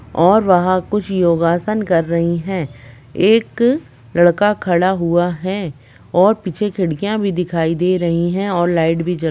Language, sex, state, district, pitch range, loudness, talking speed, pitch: Hindi, female, Uttar Pradesh, Jalaun, 170-195 Hz, -16 LUFS, 160 wpm, 180 Hz